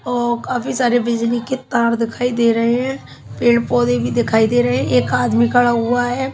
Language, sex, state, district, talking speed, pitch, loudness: Hindi, female, Haryana, Charkhi Dadri, 210 wpm, 235 Hz, -17 LUFS